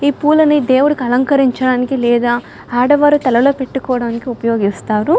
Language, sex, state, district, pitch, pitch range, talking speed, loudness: Telugu, female, Telangana, Karimnagar, 255 Hz, 240-280 Hz, 115 wpm, -14 LUFS